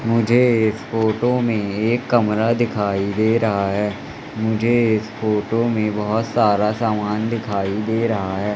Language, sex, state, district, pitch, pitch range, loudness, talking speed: Hindi, male, Madhya Pradesh, Katni, 110 Hz, 105-115 Hz, -19 LUFS, 145 wpm